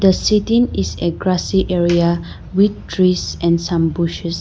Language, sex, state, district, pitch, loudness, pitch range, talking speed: English, female, Nagaland, Dimapur, 175 Hz, -17 LUFS, 170-190 Hz, 150 wpm